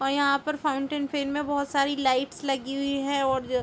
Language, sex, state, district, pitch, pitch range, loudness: Hindi, female, Chhattisgarh, Bilaspur, 280 Hz, 270-285 Hz, -26 LUFS